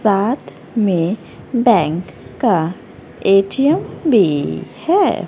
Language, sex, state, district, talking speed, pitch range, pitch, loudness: Hindi, female, Haryana, Rohtak, 80 wpm, 170-235 Hz, 200 Hz, -17 LUFS